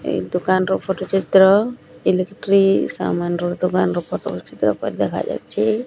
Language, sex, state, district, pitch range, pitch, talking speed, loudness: Odia, male, Odisha, Nuapada, 180-195 Hz, 190 Hz, 155 wpm, -19 LUFS